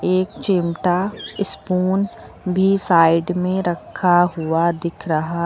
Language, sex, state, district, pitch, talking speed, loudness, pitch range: Hindi, female, Uttar Pradesh, Lucknow, 180 Hz, 110 wpm, -19 LUFS, 170-185 Hz